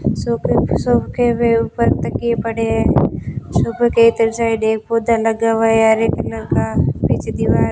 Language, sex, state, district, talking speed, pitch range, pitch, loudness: Hindi, female, Rajasthan, Bikaner, 110 wpm, 225-235 Hz, 230 Hz, -16 LUFS